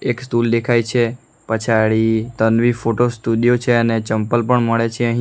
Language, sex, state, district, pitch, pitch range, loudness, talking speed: Gujarati, male, Gujarat, Valsad, 115 Hz, 115-120 Hz, -17 LUFS, 170 wpm